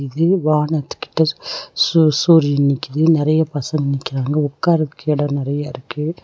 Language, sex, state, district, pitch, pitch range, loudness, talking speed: Tamil, female, Tamil Nadu, Nilgiris, 150 Hz, 145-160 Hz, -17 LUFS, 125 wpm